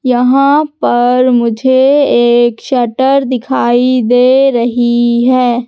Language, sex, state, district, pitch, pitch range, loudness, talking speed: Hindi, female, Madhya Pradesh, Katni, 250 Hz, 240-265 Hz, -10 LUFS, 95 wpm